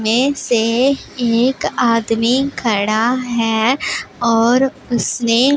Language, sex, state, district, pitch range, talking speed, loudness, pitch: Hindi, female, Punjab, Pathankot, 230-260 Hz, 85 wpm, -16 LUFS, 240 Hz